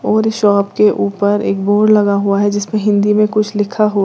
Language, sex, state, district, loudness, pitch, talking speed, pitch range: Hindi, female, Uttar Pradesh, Lalitpur, -13 LUFS, 205 Hz, 235 wpm, 200-215 Hz